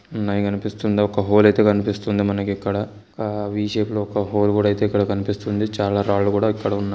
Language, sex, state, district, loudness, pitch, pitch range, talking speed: Telugu, male, Andhra Pradesh, Srikakulam, -20 LUFS, 105 Hz, 100-105 Hz, 175 wpm